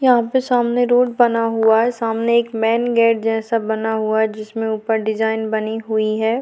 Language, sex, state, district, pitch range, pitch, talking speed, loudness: Hindi, female, Uttarakhand, Tehri Garhwal, 220-235 Hz, 225 Hz, 195 wpm, -18 LUFS